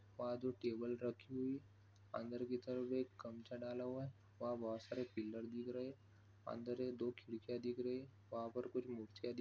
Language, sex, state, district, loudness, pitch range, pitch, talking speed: Hindi, male, Bihar, Begusarai, -47 LUFS, 115-125 Hz, 120 Hz, 205 wpm